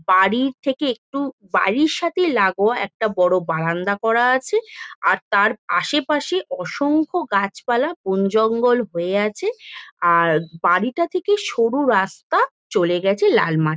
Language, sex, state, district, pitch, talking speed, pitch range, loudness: Bengali, female, West Bengal, Jhargram, 235 Hz, 125 wpm, 190-300 Hz, -19 LUFS